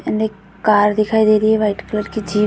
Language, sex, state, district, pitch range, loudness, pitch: Hindi, female, Uttar Pradesh, Budaun, 210-220 Hz, -16 LUFS, 215 Hz